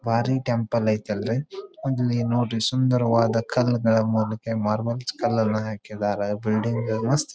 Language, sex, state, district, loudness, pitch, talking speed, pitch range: Kannada, male, Karnataka, Dharwad, -24 LUFS, 115 Hz, 115 wpm, 110-120 Hz